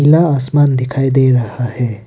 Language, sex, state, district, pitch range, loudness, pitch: Hindi, male, Arunachal Pradesh, Papum Pare, 125-145 Hz, -13 LUFS, 130 Hz